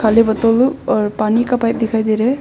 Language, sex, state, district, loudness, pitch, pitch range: Hindi, female, Arunachal Pradesh, Longding, -15 LUFS, 225 Hz, 220-240 Hz